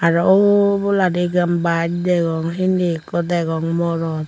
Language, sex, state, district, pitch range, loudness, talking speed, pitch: Chakma, female, Tripura, Unakoti, 165-185 Hz, -18 LUFS, 125 wpm, 170 Hz